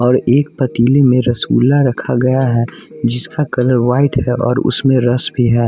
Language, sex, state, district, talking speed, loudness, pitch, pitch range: Hindi, male, Bihar, West Champaran, 180 wpm, -13 LUFS, 125 Hz, 120-130 Hz